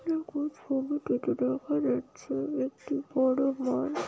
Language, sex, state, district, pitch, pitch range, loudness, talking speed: Bengali, female, West Bengal, Paschim Medinipur, 270 Hz, 255-295 Hz, -30 LUFS, 90 wpm